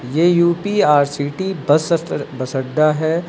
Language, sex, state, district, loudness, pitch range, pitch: Hindi, male, Uttar Pradesh, Lucknow, -17 LUFS, 145-170 Hz, 155 Hz